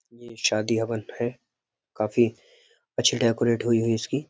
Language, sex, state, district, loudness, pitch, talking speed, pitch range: Hindi, male, Uttar Pradesh, Jyotiba Phule Nagar, -25 LUFS, 115 Hz, 140 wpm, 115-120 Hz